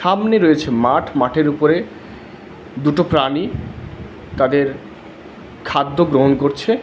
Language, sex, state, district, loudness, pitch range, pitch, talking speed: Bengali, male, West Bengal, Alipurduar, -16 LUFS, 135-170 Hz, 150 Hz, 95 wpm